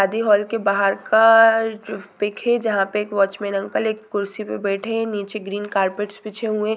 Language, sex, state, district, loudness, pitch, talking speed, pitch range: Hindi, female, Bihar, Sitamarhi, -20 LUFS, 210 Hz, 210 wpm, 200-220 Hz